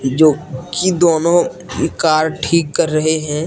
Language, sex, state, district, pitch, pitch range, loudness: Hindi, male, Jharkhand, Deoghar, 160 Hz, 155-170 Hz, -15 LUFS